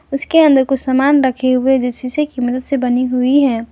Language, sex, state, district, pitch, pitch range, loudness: Hindi, female, Jharkhand, Garhwa, 260 Hz, 250-275 Hz, -14 LUFS